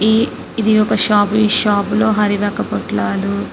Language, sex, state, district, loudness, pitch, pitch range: Telugu, female, Telangana, Karimnagar, -15 LUFS, 210 Hz, 205-215 Hz